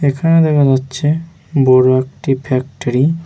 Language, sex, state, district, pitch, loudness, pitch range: Bengali, male, West Bengal, Jhargram, 135 Hz, -14 LUFS, 130-155 Hz